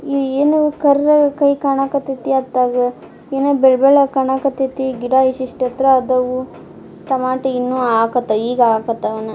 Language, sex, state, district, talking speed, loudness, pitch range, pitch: Kannada, female, Karnataka, Dharwad, 135 wpm, -16 LUFS, 250-275 Hz, 265 Hz